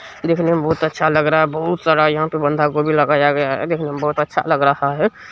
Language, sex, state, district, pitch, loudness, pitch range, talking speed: Maithili, male, Bihar, Supaul, 155 Hz, -17 LUFS, 150-160 Hz, 250 wpm